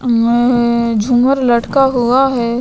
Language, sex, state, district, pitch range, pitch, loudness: Hindi, female, Goa, North and South Goa, 235-260 Hz, 240 Hz, -13 LUFS